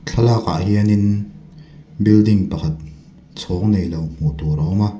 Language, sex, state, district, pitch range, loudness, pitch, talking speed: Mizo, male, Mizoram, Aizawl, 80-105 Hz, -18 LUFS, 105 Hz, 130 wpm